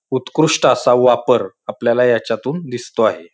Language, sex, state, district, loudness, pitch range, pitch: Marathi, male, Maharashtra, Pune, -16 LUFS, 120-130 Hz, 125 Hz